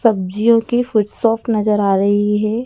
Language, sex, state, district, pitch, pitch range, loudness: Hindi, female, Madhya Pradesh, Dhar, 215 Hz, 205-230 Hz, -16 LUFS